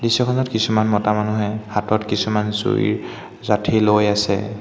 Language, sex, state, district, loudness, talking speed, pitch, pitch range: Assamese, male, Assam, Hailakandi, -19 LUFS, 130 wpm, 105 Hz, 105-110 Hz